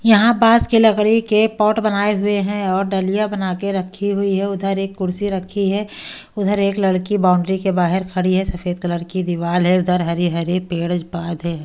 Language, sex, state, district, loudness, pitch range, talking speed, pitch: Hindi, female, Delhi, New Delhi, -18 LUFS, 180-205 Hz, 205 wpm, 195 Hz